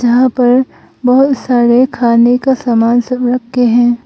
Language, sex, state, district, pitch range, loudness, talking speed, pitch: Hindi, female, Arunachal Pradesh, Longding, 240-255 Hz, -11 LUFS, 150 wpm, 245 Hz